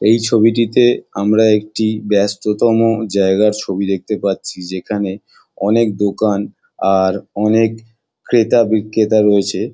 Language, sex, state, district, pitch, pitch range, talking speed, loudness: Bengali, male, West Bengal, Jalpaiguri, 105 Hz, 100-115 Hz, 105 wpm, -15 LUFS